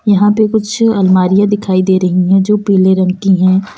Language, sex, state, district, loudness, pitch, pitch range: Hindi, female, Uttar Pradesh, Lalitpur, -11 LUFS, 195 Hz, 185-205 Hz